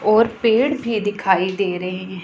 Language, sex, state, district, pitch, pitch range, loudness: Hindi, female, Punjab, Pathankot, 205 Hz, 185-225 Hz, -19 LUFS